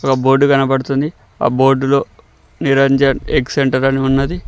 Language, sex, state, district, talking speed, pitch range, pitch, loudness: Telugu, male, Telangana, Mahabubabad, 145 wpm, 135-140 Hz, 135 Hz, -14 LUFS